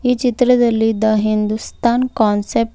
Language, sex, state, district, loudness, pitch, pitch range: Kannada, female, Karnataka, Bidar, -16 LUFS, 225 Hz, 215-250 Hz